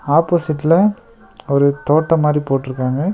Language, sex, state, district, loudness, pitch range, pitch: Tamil, male, Tamil Nadu, Nilgiris, -16 LUFS, 140-170 Hz, 150 Hz